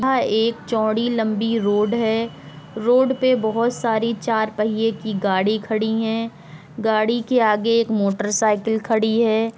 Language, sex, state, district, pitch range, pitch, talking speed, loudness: Hindi, female, Uttar Pradesh, Etah, 215-230 Hz, 220 Hz, 155 wpm, -20 LUFS